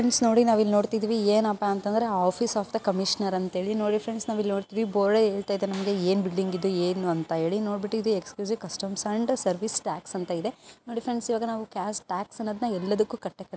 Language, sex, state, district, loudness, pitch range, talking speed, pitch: Kannada, female, Karnataka, Belgaum, -27 LUFS, 195-225 Hz, 200 wpm, 205 Hz